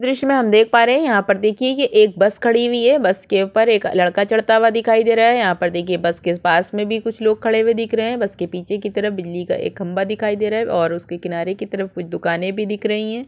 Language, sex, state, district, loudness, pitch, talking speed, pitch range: Hindi, female, Chhattisgarh, Sukma, -17 LUFS, 210 Hz, 300 wpm, 185-225 Hz